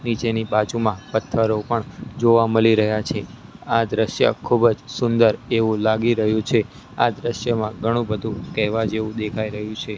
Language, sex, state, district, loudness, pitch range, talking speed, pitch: Gujarati, male, Gujarat, Gandhinagar, -21 LUFS, 110-115 Hz, 155 wpm, 110 Hz